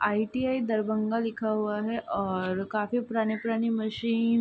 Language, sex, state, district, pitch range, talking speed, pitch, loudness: Hindi, female, Bihar, Darbhanga, 215-230 Hz, 135 wpm, 220 Hz, -29 LUFS